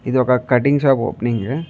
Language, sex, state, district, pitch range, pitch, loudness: Telugu, male, Andhra Pradesh, Chittoor, 120-140 Hz, 130 Hz, -17 LUFS